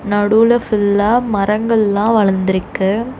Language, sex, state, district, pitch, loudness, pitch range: Tamil, female, Tamil Nadu, Chennai, 210 Hz, -14 LUFS, 200-225 Hz